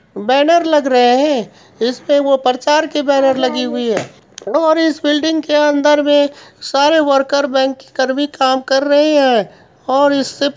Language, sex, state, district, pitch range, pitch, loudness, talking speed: Hindi, female, Bihar, Supaul, 265-295 Hz, 280 Hz, -14 LUFS, 165 wpm